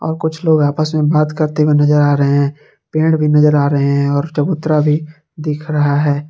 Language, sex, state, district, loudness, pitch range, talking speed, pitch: Hindi, male, Jharkhand, Palamu, -14 LUFS, 145-155 Hz, 230 wpm, 150 Hz